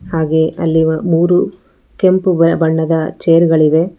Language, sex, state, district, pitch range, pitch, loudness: Kannada, female, Karnataka, Bangalore, 160-170 Hz, 165 Hz, -13 LUFS